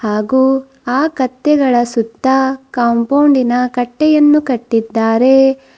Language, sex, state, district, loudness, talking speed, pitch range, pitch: Kannada, female, Karnataka, Bidar, -13 LUFS, 75 wpm, 240-270 Hz, 260 Hz